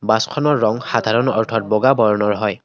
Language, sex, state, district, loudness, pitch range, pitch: Assamese, male, Assam, Kamrup Metropolitan, -17 LUFS, 110-125 Hz, 110 Hz